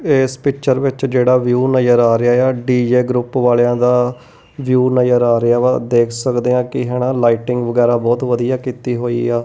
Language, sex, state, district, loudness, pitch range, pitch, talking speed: Punjabi, male, Punjab, Kapurthala, -15 LUFS, 120-130 Hz, 125 Hz, 180 wpm